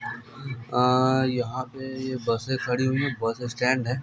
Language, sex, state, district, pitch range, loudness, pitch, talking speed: Hindi, male, Uttar Pradesh, Hamirpur, 125-130 Hz, -26 LUFS, 130 Hz, 180 wpm